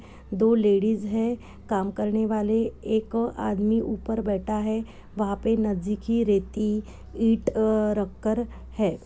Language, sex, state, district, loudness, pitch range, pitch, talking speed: Hindi, female, Bihar, Sitamarhi, -25 LUFS, 210-225 Hz, 215 Hz, 130 wpm